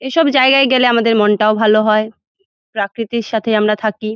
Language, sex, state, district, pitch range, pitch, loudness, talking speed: Bengali, female, West Bengal, Jalpaiguri, 215-255 Hz, 220 Hz, -14 LUFS, 160 wpm